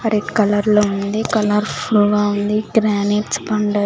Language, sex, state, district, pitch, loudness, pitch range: Telugu, female, Andhra Pradesh, Sri Satya Sai, 210 Hz, -17 LUFS, 205-215 Hz